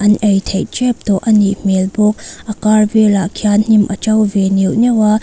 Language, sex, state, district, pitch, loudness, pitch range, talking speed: Mizo, female, Mizoram, Aizawl, 210 Hz, -13 LUFS, 200-215 Hz, 230 wpm